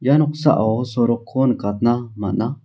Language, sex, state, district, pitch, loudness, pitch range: Garo, male, Meghalaya, South Garo Hills, 120 Hz, -19 LUFS, 115-130 Hz